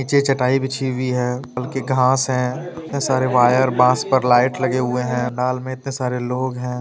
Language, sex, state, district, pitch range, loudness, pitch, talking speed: Hindi, male, Jharkhand, Deoghar, 125-130 Hz, -19 LUFS, 130 Hz, 205 wpm